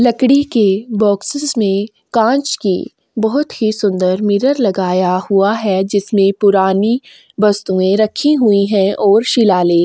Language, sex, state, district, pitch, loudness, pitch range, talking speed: Hindi, female, Chhattisgarh, Kabirdham, 205 Hz, -14 LUFS, 195-230 Hz, 130 wpm